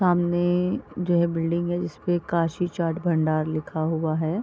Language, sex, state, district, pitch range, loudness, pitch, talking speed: Hindi, female, Uttar Pradesh, Varanasi, 160-175 Hz, -25 LUFS, 170 Hz, 160 wpm